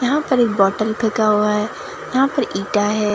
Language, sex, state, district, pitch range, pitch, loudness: Hindi, female, Bihar, Katihar, 210-250 Hz, 215 Hz, -18 LUFS